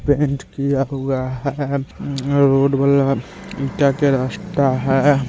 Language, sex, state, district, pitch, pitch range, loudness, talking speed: Hindi, male, Bihar, Muzaffarpur, 140 Hz, 135-140 Hz, -19 LUFS, 90 wpm